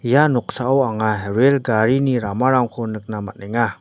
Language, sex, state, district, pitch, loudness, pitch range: Garo, male, Meghalaya, North Garo Hills, 120 Hz, -19 LUFS, 110-130 Hz